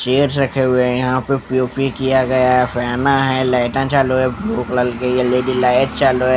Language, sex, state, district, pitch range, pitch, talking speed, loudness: Hindi, male, Bihar, West Champaran, 125-135 Hz, 130 Hz, 235 wpm, -16 LUFS